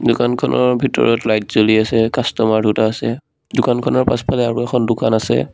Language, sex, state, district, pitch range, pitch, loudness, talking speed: Assamese, male, Assam, Sonitpur, 110-120 Hz, 115 Hz, -16 LUFS, 150 wpm